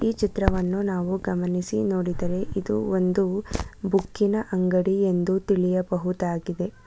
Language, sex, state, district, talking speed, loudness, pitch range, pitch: Kannada, female, Karnataka, Bangalore, 85 wpm, -25 LUFS, 180-195 Hz, 185 Hz